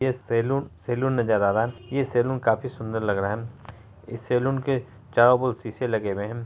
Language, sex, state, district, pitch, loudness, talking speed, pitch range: Hindi, male, Bihar, Araria, 120 Hz, -25 LUFS, 225 wpm, 110-130 Hz